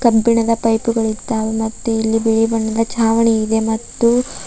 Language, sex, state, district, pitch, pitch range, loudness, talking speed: Kannada, female, Karnataka, Bidar, 225 Hz, 220-230 Hz, -16 LUFS, 120 wpm